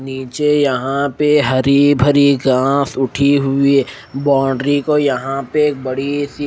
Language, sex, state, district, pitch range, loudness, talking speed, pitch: Hindi, male, Chandigarh, Chandigarh, 135-145 Hz, -15 LUFS, 150 wpm, 140 Hz